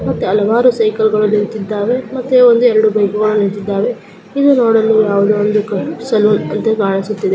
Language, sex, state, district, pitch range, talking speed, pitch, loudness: Kannada, female, Karnataka, Gulbarga, 205-225 Hz, 130 wpm, 215 Hz, -13 LUFS